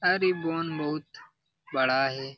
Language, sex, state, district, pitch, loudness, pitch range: Hindi, male, Bihar, Jamui, 155 Hz, -28 LUFS, 135-165 Hz